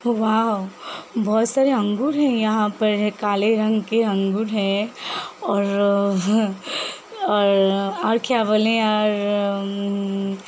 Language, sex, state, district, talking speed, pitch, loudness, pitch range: Hindi, female, Uttar Pradesh, Hamirpur, 120 wpm, 210 Hz, -21 LUFS, 200-225 Hz